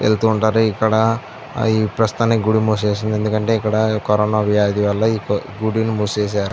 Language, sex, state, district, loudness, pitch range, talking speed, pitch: Telugu, male, Andhra Pradesh, Anantapur, -18 LUFS, 105-110 Hz, 110 wpm, 110 Hz